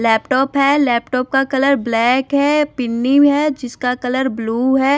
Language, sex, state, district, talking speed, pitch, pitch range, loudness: Hindi, female, Odisha, Nuapada, 155 wpm, 265 Hz, 245-280 Hz, -16 LUFS